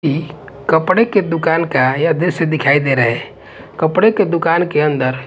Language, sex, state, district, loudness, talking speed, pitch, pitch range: Hindi, male, Punjab, Pathankot, -15 LUFS, 170 wpm, 160 Hz, 140-170 Hz